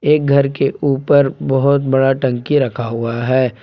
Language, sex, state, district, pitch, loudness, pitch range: Hindi, male, Jharkhand, Palamu, 135 Hz, -15 LUFS, 125-140 Hz